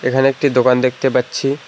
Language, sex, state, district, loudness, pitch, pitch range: Bengali, male, West Bengal, Alipurduar, -15 LUFS, 130 Hz, 125-135 Hz